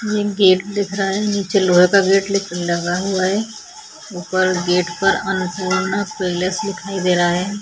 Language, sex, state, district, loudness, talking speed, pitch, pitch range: Hindi, female, Chhattisgarh, Sukma, -18 LUFS, 175 wpm, 195 Hz, 180-200 Hz